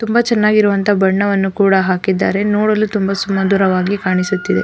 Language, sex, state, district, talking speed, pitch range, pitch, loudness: Kannada, female, Karnataka, Mysore, 115 wpm, 190-210 Hz, 200 Hz, -14 LUFS